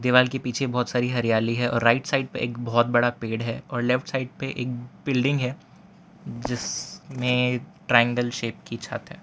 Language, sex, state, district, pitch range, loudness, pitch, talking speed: Hindi, male, Gujarat, Valsad, 120-135 Hz, -25 LUFS, 125 Hz, 190 wpm